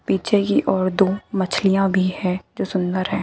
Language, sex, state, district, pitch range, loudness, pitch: Hindi, female, Bihar, Muzaffarpur, 185-195 Hz, -20 LUFS, 190 Hz